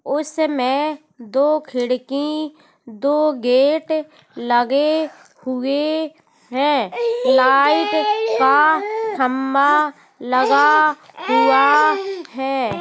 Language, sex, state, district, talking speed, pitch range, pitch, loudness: Hindi, female, Uttar Pradesh, Hamirpur, 65 wpm, 255-305 Hz, 280 Hz, -17 LUFS